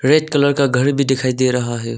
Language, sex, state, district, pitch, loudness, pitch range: Hindi, male, Arunachal Pradesh, Longding, 130 Hz, -16 LUFS, 125-140 Hz